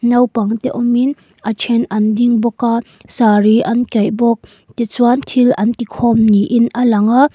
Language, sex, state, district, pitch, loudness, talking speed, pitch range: Mizo, female, Mizoram, Aizawl, 235 Hz, -14 LUFS, 180 wpm, 220-245 Hz